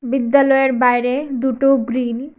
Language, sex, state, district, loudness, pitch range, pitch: Bengali, female, Tripura, West Tripura, -16 LUFS, 250-275 Hz, 265 Hz